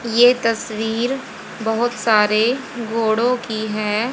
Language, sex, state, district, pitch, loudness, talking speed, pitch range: Hindi, female, Haryana, Jhajjar, 225 Hz, -19 LUFS, 100 wpm, 220-240 Hz